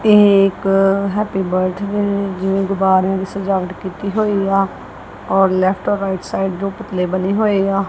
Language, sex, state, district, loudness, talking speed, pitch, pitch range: Punjabi, male, Punjab, Kapurthala, -17 LUFS, 160 wpm, 195 Hz, 190-200 Hz